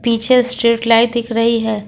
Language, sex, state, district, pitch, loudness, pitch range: Hindi, female, Jharkhand, Ranchi, 230 Hz, -14 LUFS, 230-235 Hz